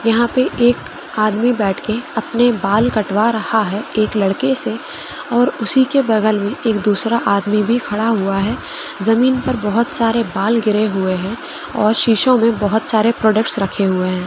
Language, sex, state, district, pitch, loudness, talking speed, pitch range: Hindi, female, Chhattisgarh, Korba, 220 Hz, -16 LUFS, 180 wpm, 210-240 Hz